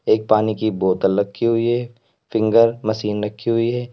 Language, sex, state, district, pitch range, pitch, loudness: Hindi, male, Uttar Pradesh, Lalitpur, 105-115 Hz, 110 Hz, -19 LUFS